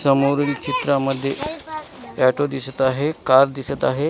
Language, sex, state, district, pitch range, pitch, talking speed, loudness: Marathi, male, Maharashtra, Washim, 135-145 Hz, 140 Hz, 115 wpm, -20 LUFS